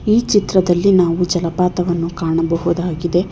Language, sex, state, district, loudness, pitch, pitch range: Kannada, female, Karnataka, Bangalore, -16 LUFS, 175 Hz, 170-185 Hz